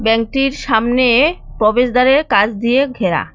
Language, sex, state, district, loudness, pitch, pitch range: Bengali, female, West Bengal, Cooch Behar, -14 LUFS, 245 Hz, 225-270 Hz